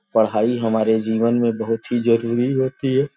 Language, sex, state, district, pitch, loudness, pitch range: Hindi, male, Uttar Pradesh, Gorakhpur, 115 Hz, -19 LUFS, 110-125 Hz